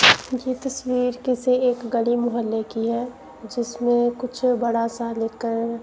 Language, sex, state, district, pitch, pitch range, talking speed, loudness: Hindi, female, Punjab, Kapurthala, 240 Hz, 230-250 Hz, 135 wpm, -23 LUFS